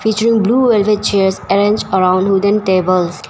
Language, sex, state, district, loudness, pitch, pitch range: English, female, Arunachal Pradesh, Papum Pare, -13 LUFS, 200 Hz, 190-215 Hz